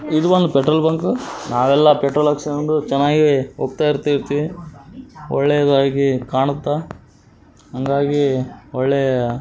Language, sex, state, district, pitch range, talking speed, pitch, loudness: Kannada, male, Karnataka, Raichur, 135-150 Hz, 95 wpm, 140 Hz, -18 LUFS